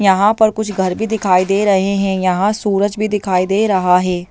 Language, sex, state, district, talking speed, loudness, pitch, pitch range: Hindi, female, Chhattisgarh, Bastar, 220 wpm, -15 LUFS, 195 Hz, 185-210 Hz